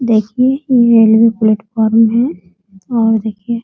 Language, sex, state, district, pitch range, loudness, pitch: Hindi, female, Bihar, Muzaffarpur, 215-235 Hz, -12 LUFS, 225 Hz